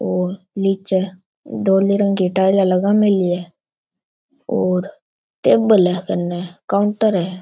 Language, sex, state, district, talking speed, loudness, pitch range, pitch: Rajasthani, male, Rajasthan, Churu, 120 wpm, -17 LUFS, 180-200 Hz, 190 Hz